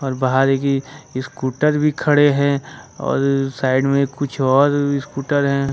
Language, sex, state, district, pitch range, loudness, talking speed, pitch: Hindi, male, Jharkhand, Ranchi, 135-145 Hz, -18 LUFS, 135 wpm, 140 Hz